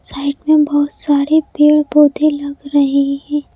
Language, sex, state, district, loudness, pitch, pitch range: Hindi, female, Madhya Pradesh, Bhopal, -14 LUFS, 290 Hz, 280-300 Hz